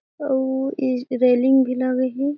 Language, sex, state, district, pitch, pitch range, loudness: Chhattisgarhi, female, Chhattisgarh, Jashpur, 260 Hz, 255-270 Hz, -20 LUFS